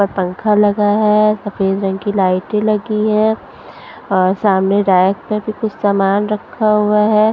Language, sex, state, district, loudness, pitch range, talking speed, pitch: Hindi, female, Punjab, Pathankot, -15 LUFS, 195-215 Hz, 155 wpm, 210 Hz